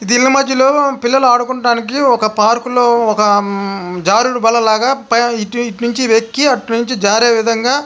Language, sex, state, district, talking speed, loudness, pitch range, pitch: Telugu, male, Andhra Pradesh, Krishna, 145 wpm, -13 LUFS, 225-255 Hz, 235 Hz